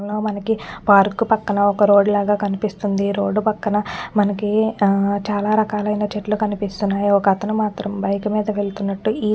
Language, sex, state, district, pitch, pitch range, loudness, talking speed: Telugu, female, Telangana, Nalgonda, 205 Hz, 200-215 Hz, -19 LUFS, 155 wpm